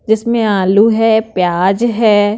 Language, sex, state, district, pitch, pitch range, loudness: Hindi, female, Bihar, Patna, 220 Hz, 195-225 Hz, -12 LUFS